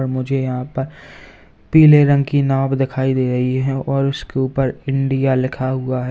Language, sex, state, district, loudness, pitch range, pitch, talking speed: Hindi, male, Uttar Pradesh, Lalitpur, -17 LUFS, 130-135 Hz, 135 Hz, 175 wpm